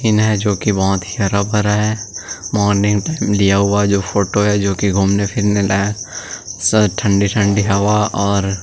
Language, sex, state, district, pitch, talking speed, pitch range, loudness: Hindi, male, Chhattisgarh, Sukma, 100 Hz, 190 wpm, 100-105 Hz, -16 LUFS